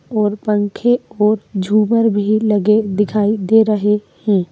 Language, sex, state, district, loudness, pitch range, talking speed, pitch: Hindi, female, Madhya Pradesh, Bhopal, -16 LUFS, 205-220 Hz, 130 wpm, 210 Hz